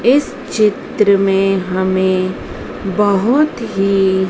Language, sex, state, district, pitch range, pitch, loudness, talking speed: Hindi, female, Madhya Pradesh, Dhar, 190-215 Hz, 195 Hz, -15 LUFS, 85 wpm